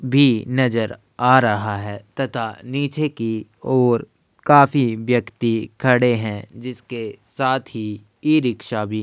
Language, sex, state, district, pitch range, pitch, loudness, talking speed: Hindi, male, Uttar Pradesh, Jyotiba Phule Nagar, 110-130 Hz, 120 Hz, -20 LUFS, 120 wpm